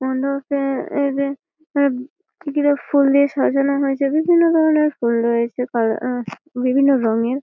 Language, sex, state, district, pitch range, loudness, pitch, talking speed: Bengali, female, West Bengal, Malda, 255-290 Hz, -18 LUFS, 275 Hz, 95 wpm